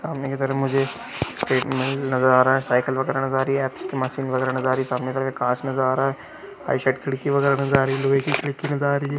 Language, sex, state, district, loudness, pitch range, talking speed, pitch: Hindi, male, Karnataka, Raichur, -22 LUFS, 130-135 Hz, 260 wpm, 135 Hz